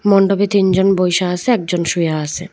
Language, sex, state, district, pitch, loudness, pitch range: Bengali, female, West Bengal, Cooch Behar, 185 Hz, -15 LUFS, 175-195 Hz